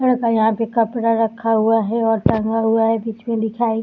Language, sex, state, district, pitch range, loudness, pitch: Hindi, female, Uttar Pradesh, Deoria, 225-230 Hz, -18 LUFS, 225 Hz